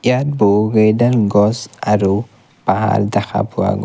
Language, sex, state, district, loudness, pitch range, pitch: Assamese, male, Assam, Kamrup Metropolitan, -15 LUFS, 105-120 Hz, 105 Hz